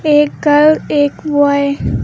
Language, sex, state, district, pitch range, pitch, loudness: Hindi, female, Uttar Pradesh, Lucknow, 285-300 Hz, 295 Hz, -12 LUFS